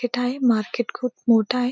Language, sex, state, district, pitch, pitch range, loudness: Marathi, female, Maharashtra, Pune, 245 Hz, 235-250 Hz, -22 LUFS